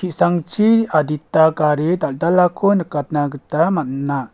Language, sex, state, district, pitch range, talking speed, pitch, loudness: Garo, male, Meghalaya, West Garo Hills, 150-180 Hz, 95 wpm, 160 Hz, -17 LUFS